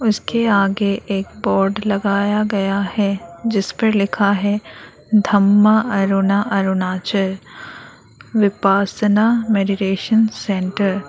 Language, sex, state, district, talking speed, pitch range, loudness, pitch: Hindi, female, Arunachal Pradesh, Lower Dibang Valley, 95 wpm, 195-210 Hz, -17 LUFS, 200 Hz